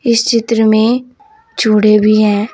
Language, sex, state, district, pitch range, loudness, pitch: Hindi, female, Uttar Pradesh, Saharanpur, 215-245 Hz, -11 LUFS, 225 Hz